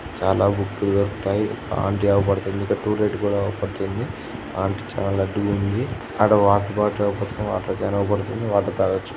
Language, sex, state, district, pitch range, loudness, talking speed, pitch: Telugu, male, Andhra Pradesh, Guntur, 100-105 Hz, -22 LUFS, 150 wpm, 100 Hz